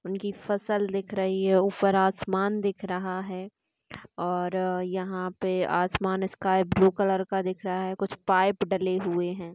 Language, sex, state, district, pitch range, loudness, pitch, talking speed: Marathi, female, Maharashtra, Sindhudurg, 185-195 Hz, -27 LUFS, 190 Hz, 165 wpm